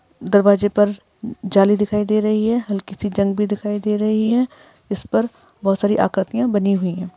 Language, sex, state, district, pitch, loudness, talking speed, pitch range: Hindi, female, Bihar, Gaya, 205 Hz, -19 LUFS, 190 wpm, 200-215 Hz